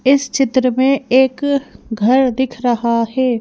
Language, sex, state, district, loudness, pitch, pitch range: Hindi, female, Madhya Pradesh, Bhopal, -15 LUFS, 260 Hz, 245-270 Hz